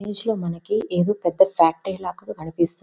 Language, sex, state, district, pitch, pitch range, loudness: Telugu, female, Andhra Pradesh, Visakhapatnam, 180 Hz, 170-205 Hz, -22 LUFS